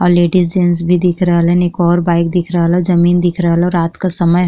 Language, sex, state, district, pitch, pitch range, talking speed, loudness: Bhojpuri, female, Uttar Pradesh, Gorakhpur, 175 Hz, 170-180 Hz, 280 wpm, -13 LUFS